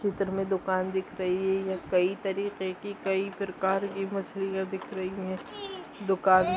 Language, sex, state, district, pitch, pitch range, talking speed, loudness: Hindi, female, Chhattisgarh, Rajnandgaon, 190 Hz, 190-195 Hz, 165 wpm, -30 LUFS